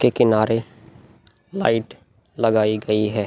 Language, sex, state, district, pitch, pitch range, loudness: Hindi, male, Uttar Pradesh, Muzaffarnagar, 110 Hz, 105-115 Hz, -20 LUFS